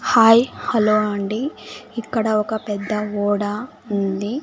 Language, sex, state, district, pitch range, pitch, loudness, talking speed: Telugu, female, Andhra Pradesh, Sri Satya Sai, 205-225 Hz, 215 Hz, -20 LUFS, 110 wpm